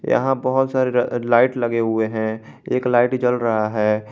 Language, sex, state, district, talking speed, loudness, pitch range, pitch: Hindi, male, Jharkhand, Garhwa, 175 wpm, -19 LUFS, 110-125 Hz, 120 Hz